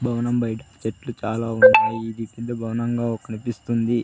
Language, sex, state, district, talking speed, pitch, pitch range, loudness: Telugu, male, Andhra Pradesh, Sri Satya Sai, 135 wpm, 115 Hz, 115-120 Hz, -22 LUFS